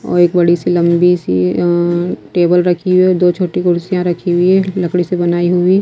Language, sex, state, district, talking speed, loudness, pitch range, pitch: Hindi, female, Himachal Pradesh, Shimla, 205 wpm, -13 LUFS, 175-180 Hz, 175 Hz